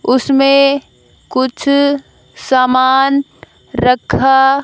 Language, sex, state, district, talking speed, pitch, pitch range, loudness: Hindi, female, Haryana, Jhajjar, 50 wpm, 270 Hz, 260-275 Hz, -12 LUFS